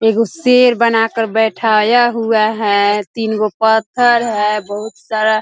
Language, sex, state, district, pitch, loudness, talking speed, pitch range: Hindi, female, Bihar, East Champaran, 220 Hz, -14 LUFS, 155 wpm, 215-230 Hz